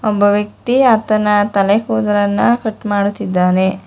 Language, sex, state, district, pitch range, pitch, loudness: Kannada, female, Karnataka, Bangalore, 200-215 Hz, 205 Hz, -14 LUFS